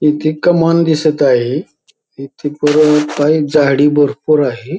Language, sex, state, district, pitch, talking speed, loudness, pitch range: Marathi, male, Maharashtra, Pune, 150 Hz, 125 wpm, -13 LUFS, 145-155 Hz